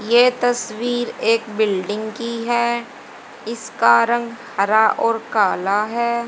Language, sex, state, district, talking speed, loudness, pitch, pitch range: Hindi, female, Haryana, Jhajjar, 115 wpm, -19 LUFS, 230 Hz, 215-235 Hz